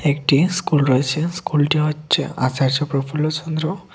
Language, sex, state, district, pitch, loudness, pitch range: Bengali, male, Tripura, West Tripura, 150 Hz, -19 LUFS, 140-160 Hz